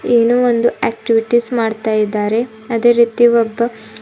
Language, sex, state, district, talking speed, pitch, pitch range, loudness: Kannada, female, Karnataka, Bidar, 105 wpm, 230 Hz, 220-240 Hz, -15 LUFS